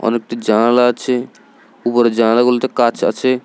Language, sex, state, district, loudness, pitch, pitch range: Bengali, female, Tripura, South Tripura, -15 LUFS, 120 Hz, 115-125 Hz